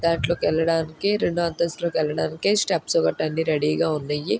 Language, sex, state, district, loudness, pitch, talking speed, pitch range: Telugu, female, Andhra Pradesh, Guntur, -23 LUFS, 165 Hz, 150 wpm, 155-170 Hz